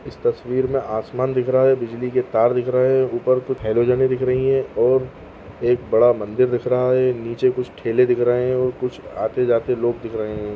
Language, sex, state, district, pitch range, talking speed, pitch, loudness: Hindi, male, Bihar, Jahanabad, 120-130 Hz, 220 wpm, 125 Hz, -20 LUFS